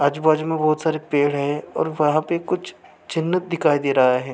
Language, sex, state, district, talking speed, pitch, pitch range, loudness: Hindi, male, Maharashtra, Aurangabad, 205 wpm, 155 Hz, 145-160 Hz, -21 LUFS